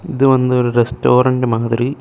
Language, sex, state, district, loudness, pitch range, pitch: Tamil, male, Tamil Nadu, Kanyakumari, -14 LUFS, 120-130 Hz, 125 Hz